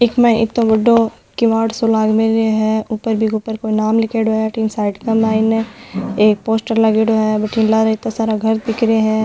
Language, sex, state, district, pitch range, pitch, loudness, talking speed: Marwari, female, Rajasthan, Nagaur, 220-225 Hz, 220 Hz, -16 LUFS, 200 wpm